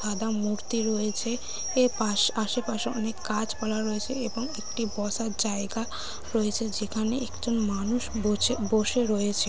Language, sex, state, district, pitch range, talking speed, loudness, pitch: Bengali, female, West Bengal, Malda, 210-235 Hz, 140 wpm, -28 LUFS, 220 Hz